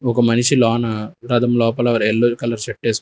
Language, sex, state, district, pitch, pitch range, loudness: Telugu, male, Andhra Pradesh, Sri Satya Sai, 120 Hz, 115-120 Hz, -17 LUFS